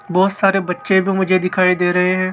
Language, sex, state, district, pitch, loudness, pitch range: Hindi, male, Rajasthan, Jaipur, 185 Hz, -16 LUFS, 180-195 Hz